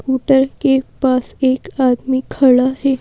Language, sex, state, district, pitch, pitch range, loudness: Hindi, female, Madhya Pradesh, Bhopal, 265 Hz, 260-270 Hz, -15 LUFS